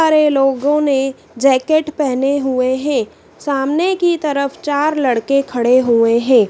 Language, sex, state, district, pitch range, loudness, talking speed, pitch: Hindi, female, Madhya Pradesh, Dhar, 260-295 Hz, -15 LUFS, 140 wpm, 275 Hz